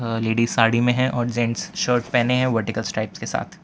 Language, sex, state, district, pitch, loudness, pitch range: Hindi, male, Gujarat, Valsad, 120 Hz, -21 LUFS, 115-125 Hz